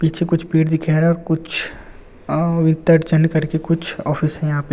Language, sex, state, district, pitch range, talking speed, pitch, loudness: Hindi, male, Andhra Pradesh, Visakhapatnam, 155-165 Hz, 150 wpm, 160 Hz, -18 LUFS